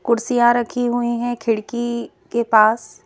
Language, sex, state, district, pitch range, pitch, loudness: Hindi, female, Madhya Pradesh, Bhopal, 230-240 Hz, 235 Hz, -19 LUFS